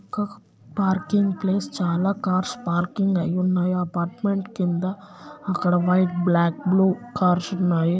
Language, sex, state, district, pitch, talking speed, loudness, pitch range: Telugu, female, Telangana, Nalgonda, 185 Hz, 120 wpm, -23 LUFS, 175-195 Hz